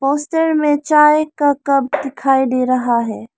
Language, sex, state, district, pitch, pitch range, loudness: Hindi, female, Arunachal Pradesh, Lower Dibang Valley, 280 Hz, 255-300 Hz, -15 LUFS